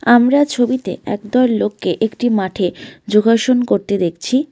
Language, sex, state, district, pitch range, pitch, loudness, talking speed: Bengali, female, West Bengal, Alipurduar, 200-250 Hz, 230 Hz, -16 LUFS, 120 wpm